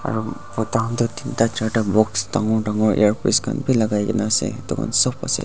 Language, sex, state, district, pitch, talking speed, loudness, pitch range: Nagamese, male, Nagaland, Dimapur, 110 Hz, 200 wpm, -20 LUFS, 105-115 Hz